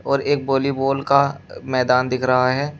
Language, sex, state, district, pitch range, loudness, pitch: Hindi, male, Uttar Pradesh, Shamli, 130-140 Hz, -19 LUFS, 135 Hz